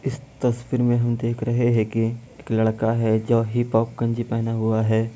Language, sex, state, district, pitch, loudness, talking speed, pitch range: Hindi, male, Bihar, Kishanganj, 115 Hz, -22 LUFS, 200 wpm, 110-120 Hz